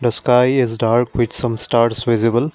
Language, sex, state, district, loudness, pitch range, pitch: English, male, Assam, Kamrup Metropolitan, -16 LUFS, 115-125 Hz, 120 Hz